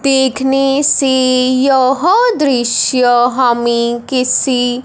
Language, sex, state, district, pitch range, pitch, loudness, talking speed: Hindi, male, Punjab, Fazilka, 245-270 Hz, 260 Hz, -12 LUFS, 75 wpm